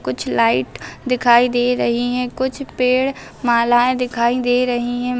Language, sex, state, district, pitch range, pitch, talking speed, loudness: Hindi, female, Bihar, Bhagalpur, 235-250 Hz, 245 Hz, 150 wpm, -17 LUFS